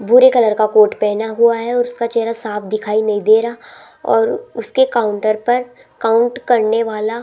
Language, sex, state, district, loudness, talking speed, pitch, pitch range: Hindi, female, Rajasthan, Jaipur, -15 LUFS, 190 wpm, 230 Hz, 215-240 Hz